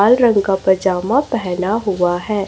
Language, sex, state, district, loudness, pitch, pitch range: Hindi, female, Chhattisgarh, Raipur, -16 LUFS, 200 Hz, 185-225 Hz